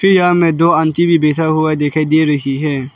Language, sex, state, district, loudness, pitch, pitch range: Hindi, male, Arunachal Pradesh, Lower Dibang Valley, -13 LUFS, 155 Hz, 150-170 Hz